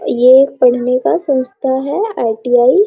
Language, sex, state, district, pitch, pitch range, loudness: Hindi, female, Bihar, Araria, 255 Hz, 245-275 Hz, -13 LUFS